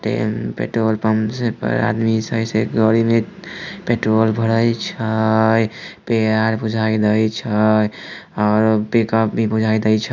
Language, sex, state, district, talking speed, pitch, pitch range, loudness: Maithili, male, Bihar, Samastipur, 100 wpm, 110 Hz, 110-115 Hz, -18 LUFS